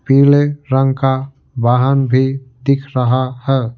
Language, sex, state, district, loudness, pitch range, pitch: Hindi, male, Bihar, Patna, -15 LUFS, 130-135 Hz, 135 Hz